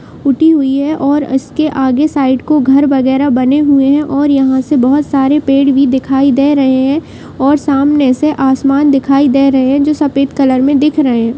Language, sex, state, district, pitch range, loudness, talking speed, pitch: Hindi, female, Uttar Pradesh, Jyotiba Phule Nagar, 265-290 Hz, -11 LUFS, 205 wpm, 275 Hz